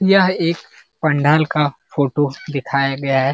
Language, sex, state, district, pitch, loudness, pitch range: Hindi, male, Bihar, Jamui, 145 Hz, -18 LUFS, 140-165 Hz